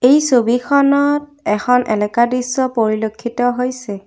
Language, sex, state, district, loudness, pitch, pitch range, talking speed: Assamese, female, Assam, Kamrup Metropolitan, -16 LUFS, 245 Hz, 225-265 Hz, 105 wpm